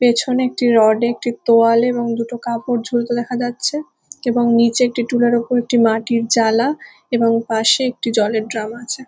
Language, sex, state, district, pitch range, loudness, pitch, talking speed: Bengali, female, West Bengal, Kolkata, 230-245 Hz, -17 LUFS, 235 Hz, 170 wpm